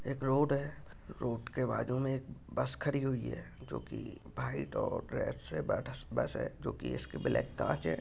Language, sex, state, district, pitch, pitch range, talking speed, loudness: Hindi, male, Maharashtra, Pune, 130 Hz, 115-140 Hz, 165 wpm, -36 LUFS